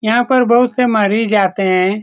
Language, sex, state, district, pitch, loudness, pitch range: Hindi, male, Bihar, Saran, 220 Hz, -13 LUFS, 200-245 Hz